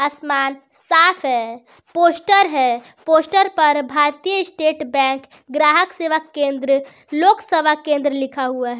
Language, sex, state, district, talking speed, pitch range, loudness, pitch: Hindi, female, Jharkhand, Garhwa, 125 wpm, 275-330 Hz, -17 LUFS, 295 Hz